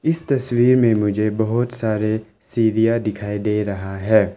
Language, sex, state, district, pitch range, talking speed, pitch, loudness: Hindi, male, Arunachal Pradesh, Longding, 105-120 Hz, 150 wpm, 110 Hz, -19 LUFS